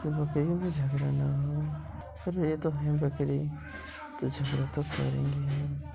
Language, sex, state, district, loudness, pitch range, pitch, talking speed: Hindi, male, Bihar, Gopalganj, -31 LUFS, 135-150 Hz, 140 Hz, 160 wpm